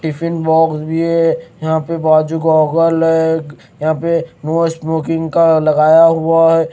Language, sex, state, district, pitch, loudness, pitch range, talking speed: Hindi, male, Maharashtra, Mumbai Suburban, 160 Hz, -13 LUFS, 160-165 Hz, 150 wpm